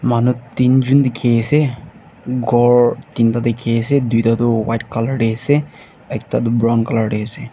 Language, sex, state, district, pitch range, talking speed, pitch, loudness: Nagamese, male, Nagaland, Dimapur, 115-130 Hz, 150 wpm, 120 Hz, -16 LUFS